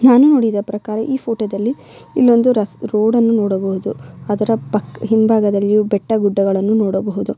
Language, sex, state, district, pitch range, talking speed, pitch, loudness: Kannada, female, Karnataka, Bellary, 205-230 Hz, 155 wpm, 215 Hz, -16 LUFS